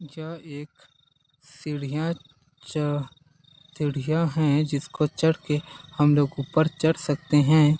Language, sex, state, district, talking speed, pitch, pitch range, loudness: Hindi, male, Chhattisgarh, Balrampur, 115 wpm, 150 Hz, 145-155 Hz, -25 LUFS